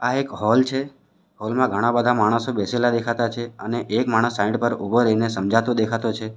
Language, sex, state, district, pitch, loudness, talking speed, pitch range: Gujarati, male, Gujarat, Valsad, 115 Hz, -21 LUFS, 205 wpm, 110-125 Hz